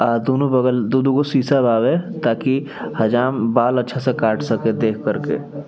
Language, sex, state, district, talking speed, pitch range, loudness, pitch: Bhojpuri, male, Bihar, East Champaran, 180 wpm, 115-140 Hz, -18 LUFS, 125 Hz